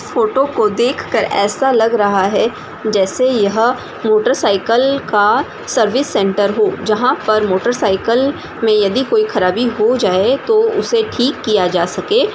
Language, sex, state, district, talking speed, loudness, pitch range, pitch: Hindi, female, Bihar, Samastipur, 135 wpm, -14 LUFS, 205-265 Hz, 225 Hz